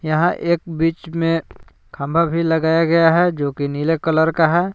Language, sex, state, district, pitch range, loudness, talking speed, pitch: Hindi, male, Jharkhand, Palamu, 155-170 Hz, -18 LUFS, 190 wpm, 165 Hz